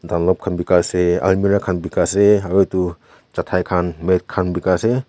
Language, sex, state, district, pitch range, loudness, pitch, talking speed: Nagamese, male, Nagaland, Kohima, 90-95 Hz, -18 LUFS, 90 Hz, 190 wpm